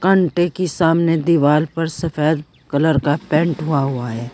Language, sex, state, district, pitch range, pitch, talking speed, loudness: Hindi, female, Uttar Pradesh, Saharanpur, 145-165 Hz, 160 Hz, 165 wpm, -18 LUFS